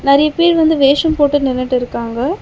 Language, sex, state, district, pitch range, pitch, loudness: Tamil, female, Tamil Nadu, Chennai, 255-315 Hz, 285 Hz, -13 LUFS